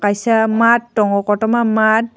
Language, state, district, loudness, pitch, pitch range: Kokborok, Tripura, Dhalai, -15 LUFS, 220 Hz, 210-230 Hz